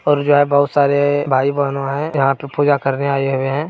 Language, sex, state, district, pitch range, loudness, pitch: Maithili, male, Bihar, Purnia, 135-145 Hz, -16 LUFS, 140 Hz